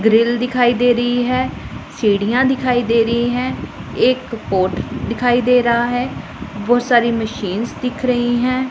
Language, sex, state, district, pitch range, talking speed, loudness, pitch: Hindi, female, Punjab, Pathankot, 230-250 Hz, 150 wpm, -17 LUFS, 240 Hz